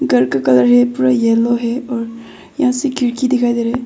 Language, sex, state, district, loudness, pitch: Hindi, female, Arunachal Pradesh, Longding, -15 LUFS, 235 Hz